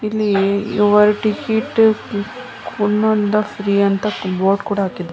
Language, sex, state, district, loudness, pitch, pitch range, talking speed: Kannada, female, Karnataka, Mysore, -17 LUFS, 210 Hz, 200-215 Hz, 95 wpm